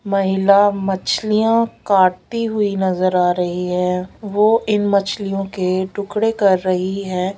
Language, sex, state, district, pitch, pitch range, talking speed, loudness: Hindi, female, Odisha, Sambalpur, 195 Hz, 185-210 Hz, 130 wpm, -17 LUFS